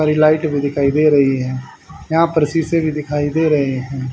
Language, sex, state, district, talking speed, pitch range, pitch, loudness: Hindi, male, Haryana, Rohtak, 205 wpm, 140-155 Hz, 150 Hz, -16 LUFS